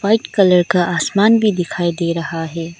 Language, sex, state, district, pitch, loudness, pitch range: Hindi, female, Arunachal Pradesh, Lower Dibang Valley, 175 Hz, -16 LUFS, 170-200 Hz